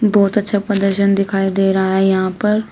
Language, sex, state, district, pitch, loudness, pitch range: Hindi, female, Uttar Pradesh, Shamli, 195 Hz, -16 LUFS, 195-205 Hz